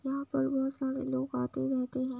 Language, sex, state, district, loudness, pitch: Hindi, female, Uttar Pradesh, Budaun, -33 LUFS, 265 Hz